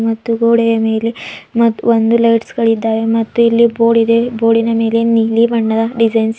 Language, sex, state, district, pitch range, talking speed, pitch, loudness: Kannada, female, Karnataka, Bidar, 225-230 Hz, 160 wpm, 230 Hz, -13 LUFS